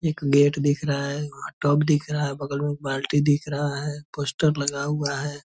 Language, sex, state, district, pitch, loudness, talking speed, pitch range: Hindi, male, Bihar, Purnia, 145 Hz, -24 LUFS, 240 wpm, 140-150 Hz